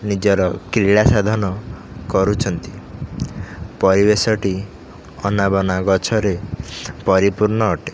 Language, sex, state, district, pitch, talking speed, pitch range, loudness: Odia, male, Odisha, Khordha, 100 Hz, 70 wpm, 95-105 Hz, -18 LUFS